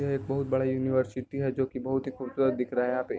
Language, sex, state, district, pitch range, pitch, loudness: Hindi, male, Bihar, Sitamarhi, 130-135 Hz, 130 Hz, -29 LUFS